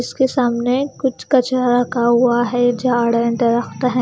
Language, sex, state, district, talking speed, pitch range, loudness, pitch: Hindi, female, Chandigarh, Chandigarh, 165 wpm, 240-255 Hz, -17 LUFS, 245 Hz